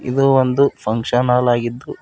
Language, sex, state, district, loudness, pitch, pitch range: Kannada, male, Karnataka, Bidar, -17 LUFS, 125 Hz, 120-135 Hz